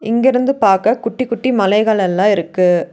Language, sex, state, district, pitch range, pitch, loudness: Tamil, female, Tamil Nadu, Nilgiris, 195-240 Hz, 220 Hz, -14 LUFS